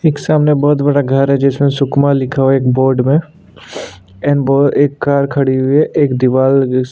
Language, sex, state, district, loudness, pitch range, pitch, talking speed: Hindi, male, Chhattisgarh, Sukma, -12 LUFS, 130-145 Hz, 140 Hz, 210 wpm